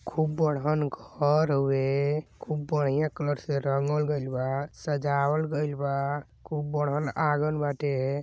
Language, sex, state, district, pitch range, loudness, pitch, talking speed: Bhojpuri, male, Uttar Pradesh, Gorakhpur, 140-150 Hz, -28 LUFS, 145 Hz, 130 wpm